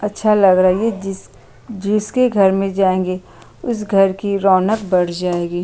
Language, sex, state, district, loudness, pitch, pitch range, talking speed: Hindi, female, Uttar Pradesh, Jyotiba Phule Nagar, -16 LUFS, 195 Hz, 185-210 Hz, 170 wpm